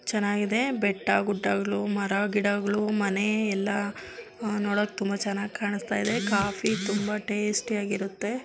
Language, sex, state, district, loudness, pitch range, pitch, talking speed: Kannada, female, Karnataka, Dakshina Kannada, -27 LUFS, 200-210 Hz, 205 Hz, 115 wpm